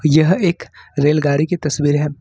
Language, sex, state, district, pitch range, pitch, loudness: Hindi, male, Jharkhand, Ranchi, 145-160 Hz, 150 Hz, -16 LUFS